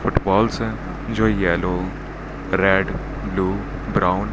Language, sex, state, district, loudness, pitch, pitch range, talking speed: Hindi, male, Rajasthan, Bikaner, -21 LUFS, 95 Hz, 95-110 Hz, 110 wpm